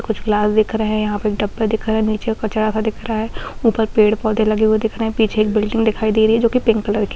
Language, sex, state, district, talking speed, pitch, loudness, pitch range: Hindi, female, Bihar, Muzaffarpur, 320 wpm, 220 Hz, -17 LUFS, 215-220 Hz